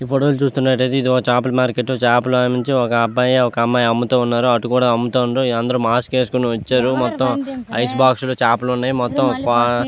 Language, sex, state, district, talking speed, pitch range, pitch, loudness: Telugu, male, Andhra Pradesh, Visakhapatnam, 200 wpm, 120-130 Hz, 125 Hz, -17 LUFS